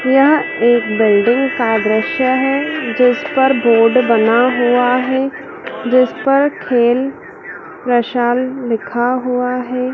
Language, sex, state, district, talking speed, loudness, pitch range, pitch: Hindi, female, Madhya Pradesh, Dhar, 115 wpm, -14 LUFS, 240-265 Hz, 250 Hz